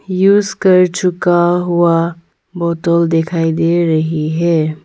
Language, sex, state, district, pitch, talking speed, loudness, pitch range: Hindi, female, Arunachal Pradesh, Longding, 170 Hz, 110 wpm, -13 LUFS, 165-180 Hz